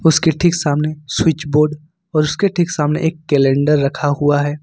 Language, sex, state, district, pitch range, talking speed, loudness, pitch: Hindi, male, Jharkhand, Ranchi, 145-160 Hz, 180 wpm, -16 LUFS, 150 Hz